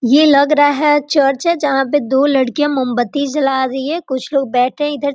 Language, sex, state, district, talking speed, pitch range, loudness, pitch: Hindi, female, Bihar, Gopalganj, 235 wpm, 265-295 Hz, -14 LUFS, 280 Hz